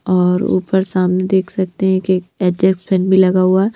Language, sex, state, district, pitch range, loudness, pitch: Hindi, female, Punjab, Pathankot, 185-190 Hz, -15 LUFS, 185 Hz